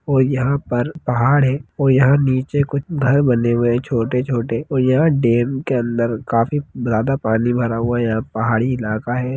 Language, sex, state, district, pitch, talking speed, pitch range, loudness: Hindi, male, Bihar, Begusarai, 125 Hz, 185 wpm, 115-135 Hz, -18 LUFS